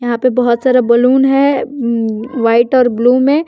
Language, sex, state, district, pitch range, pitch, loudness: Hindi, female, Jharkhand, Deoghar, 235-265 Hz, 250 Hz, -12 LUFS